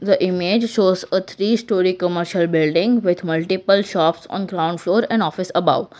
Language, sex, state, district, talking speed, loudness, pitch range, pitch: English, female, Gujarat, Valsad, 170 wpm, -19 LUFS, 170-195 Hz, 185 Hz